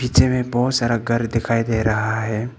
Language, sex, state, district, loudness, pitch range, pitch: Hindi, male, Arunachal Pradesh, Papum Pare, -20 LUFS, 110-125 Hz, 115 Hz